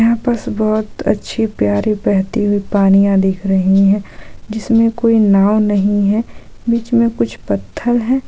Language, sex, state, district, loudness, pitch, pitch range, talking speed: Hindi, female, Jharkhand, Sahebganj, -15 LUFS, 210 Hz, 195-230 Hz, 150 wpm